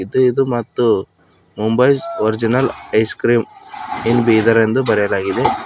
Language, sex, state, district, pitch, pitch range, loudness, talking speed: Kannada, male, Karnataka, Bidar, 115 Hz, 110-125 Hz, -16 LUFS, 115 wpm